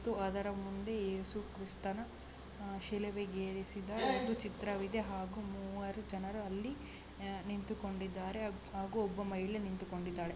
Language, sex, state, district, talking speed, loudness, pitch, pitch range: Kannada, female, Karnataka, Belgaum, 85 wpm, -40 LUFS, 200 Hz, 195-210 Hz